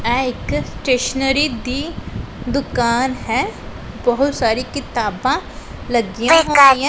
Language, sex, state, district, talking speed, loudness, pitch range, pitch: Punjabi, female, Punjab, Pathankot, 95 wpm, -18 LUFS, 240-280 Hz, 260 Hz